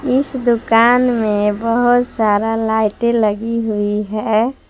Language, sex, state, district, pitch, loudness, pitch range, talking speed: Hindi, female, Jharkhand, Palamu, 225 Hz, -16 LUFS, 215-240 Hz, 115 wpm